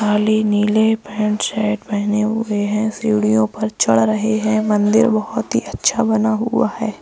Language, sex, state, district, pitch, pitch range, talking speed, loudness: Hindi, female, Uttar Pradesh, Saharanpur, 215 Hz, 205-220 Hz, 160 wpm, -17 LUFS